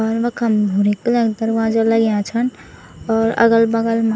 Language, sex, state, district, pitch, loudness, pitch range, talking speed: Garhwali, female, Uttarakhand, Tehri Garhwal, 225 Hz, -17 LUFS, 220-230 Hz, 175 wpm